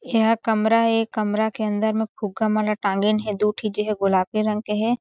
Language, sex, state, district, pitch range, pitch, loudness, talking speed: Chhattisgarhi, female, Chhattisgarh, Sarguja, 210-225 Hz, 215 Hz, -22 LUFS, 240 wpm